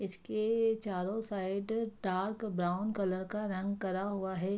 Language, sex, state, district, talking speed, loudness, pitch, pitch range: Hindi, female, Bihar, Araria, 145 wpm, -35 LUFS, 200 Hz, 190-215 Hz